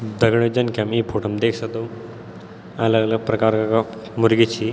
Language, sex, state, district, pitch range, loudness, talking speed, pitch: Garhwali, male, Uttarakhand, Tehri Garhwal, 110-115 Hz, -20 LUFS, 175 wpm, 115 Hz